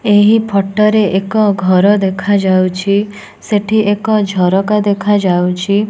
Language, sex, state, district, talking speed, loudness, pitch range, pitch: Odia, female, Odisha, Nuapada, 100 wpm, -12 LUFS, 190-210 Hz, 205 Hz